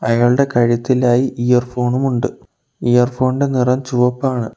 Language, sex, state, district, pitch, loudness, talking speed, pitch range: Malayalam, male, Kerala, Kollam, 125 Hz, -16 LUFS, 130 wpm, 120-130 Hz